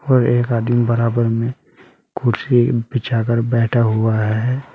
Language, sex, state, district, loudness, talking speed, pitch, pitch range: Hindi, male, Uttar Pradesh, Saharanpur, -17 LUFS, 140 wpm, 120 Hz, 115-120 Hz